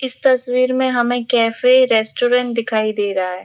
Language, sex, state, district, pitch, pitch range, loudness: Hindi, female, Rajasthan, Jaipur, 245 Hz, 220-255 Hz, -15 LUFS